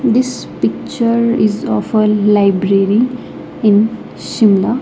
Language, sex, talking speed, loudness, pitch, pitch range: English, female, 100 wpm, -14 LUFS, 215 Hz, 205-235 Hz